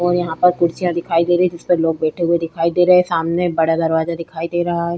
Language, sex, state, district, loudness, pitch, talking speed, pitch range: Hindi, female, Bihar, Vaishali, -17 LUFS, 170 Hz, 290 wpm, 165-175 Hz